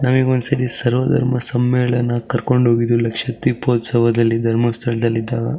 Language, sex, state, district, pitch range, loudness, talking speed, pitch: Kannada, male, Karnataka, Shimoga, 115-125 Hz, -17 LUFS, 120 wpm, 120 Hz